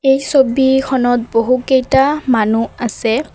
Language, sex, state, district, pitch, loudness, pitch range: Assamese, female, Assam, Kamrup Metropolitan, 255 Hz, -14 LUFS, 230-270 Hz